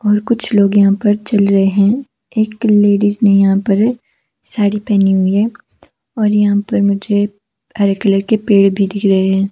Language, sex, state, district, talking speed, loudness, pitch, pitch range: Hindi, female, Himachal Pradesh, Shimla, 185 wpm, -13 LUFS, 205 Hz, 195-215 Hz